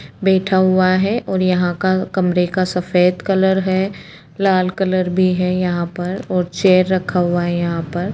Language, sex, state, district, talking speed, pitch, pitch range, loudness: Hindi, female, Jharkhand, Sahebganj, 175 wpm, 185 Hz, 180-190 Hz, -17 LUFS